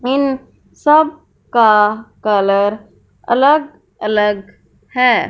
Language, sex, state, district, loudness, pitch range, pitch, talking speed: Hindi, female, Punjab, Fazilka, -14 LUFS, 210-275 Hz, 230 Hz, 80 wpm